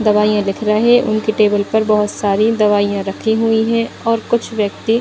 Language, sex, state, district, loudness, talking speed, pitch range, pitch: Hindi, female, Bihar, Kishanganj, -15 LUFS, 190 wpm, 210-225 Hz, 215 Hz